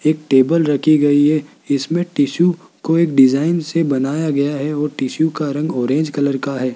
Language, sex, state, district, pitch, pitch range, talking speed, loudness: Hindi, male, Rajasthan, Jaipur, 150 Hz, 140-160 Hz, 195 wpm, -17 LUFS